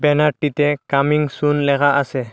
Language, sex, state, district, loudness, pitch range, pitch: Bengali, male, Assam, Hailakandi, -17 LUFS, 140-150 Hz, 145 Hz